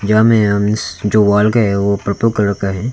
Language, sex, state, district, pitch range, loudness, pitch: Hindi, male, Arunachal Pradesh, Longding, 100-110 Hz, -14 LUFS, 105 Hz